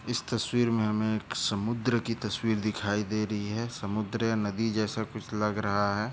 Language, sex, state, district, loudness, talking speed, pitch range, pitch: Hindi, male, Maharashtra, Aurangabad, -30 LUFS, 195 wpm, 105-115 Hz, 110 Hz